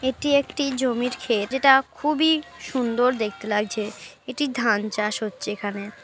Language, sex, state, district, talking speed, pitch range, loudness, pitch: Bengali, female, West Bengal, North 24 Parganas, 140 wpm, 210-270 Hz, -23 LUFS, 245 Hz